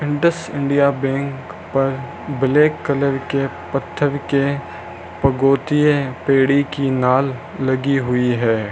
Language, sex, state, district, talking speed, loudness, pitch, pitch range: Hindi, male, Rajasthan, Bikaner, 110 wpm, -18 LUFS, 140 Hz, 130-140 Hz